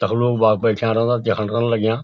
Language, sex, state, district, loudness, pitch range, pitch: Garhwali, male, Uttarakhand, Uttarkashi, -18 LUFS, 110-120 Hz, 115 Hz